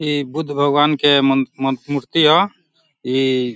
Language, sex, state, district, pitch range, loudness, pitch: Hindi, male, Uttar Pradesh, Deoria, 135-155 Hz, -17 LUFS, 145 Hz